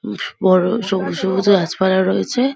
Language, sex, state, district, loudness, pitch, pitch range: Bengali, female, West Bengal, Kolkata, -17 LUFS, 190 Hz, 190-200 Hz